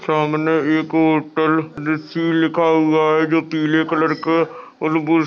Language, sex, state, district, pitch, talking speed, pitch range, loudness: Hindi, male, Chhattisgarh, Balrampur, 160 Hz, 125 wpm, 155-160 Hz, -18 LUFS